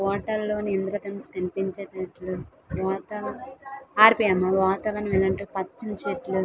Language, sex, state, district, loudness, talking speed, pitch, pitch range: Telugu, female, Andhra Pradesh, Visakhapatnam, -25 LUFS, 75 wpm, 195 Hz, 190-210 Hz